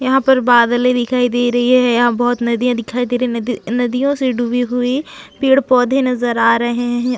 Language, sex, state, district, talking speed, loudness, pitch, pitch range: Hindi, female, Chhattisgarh, Sukma, 200 wpm, -15 LUFS, 245 Hz, 240-250 Hz